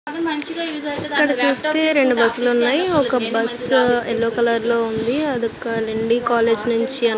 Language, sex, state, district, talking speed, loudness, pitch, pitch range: Telugu, female, Andhra Pradesh, Visakhapatnam, 150 wpm, -18 LUFS, 245 Hz, 230-290 Hz